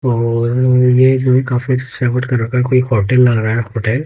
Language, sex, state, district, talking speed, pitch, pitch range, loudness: Hindi, female, Haryana, Jhajjar, 105 wpm, 125 Hz, 115-130 Hz, -14 LUFS